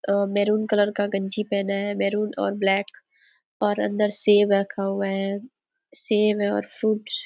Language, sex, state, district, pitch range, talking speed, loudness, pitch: Hindi, female, Jharkhand, Sahebganj, 195-210 Hz, 175 wpm, -23 LUFS, 205 Hz